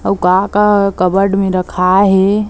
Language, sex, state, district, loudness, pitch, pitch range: Chhattisgarhi, female, Chhattisgarh, Bilaspur, -12 LUFS, 195 Hz, 185-200 Hz